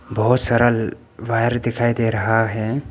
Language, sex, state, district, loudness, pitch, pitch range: Hindi, male, Arunachal Pradesh, Papum Pare, -19 LUFS, 115 Hz, 110-120 Hz